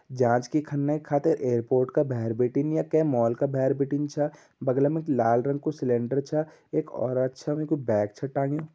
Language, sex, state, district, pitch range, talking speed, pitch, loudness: Garhwali, male, Uttarakhand, Uttarkashi, 125-150 Hz, 205 wpm, 140 Hz, -26 LUFS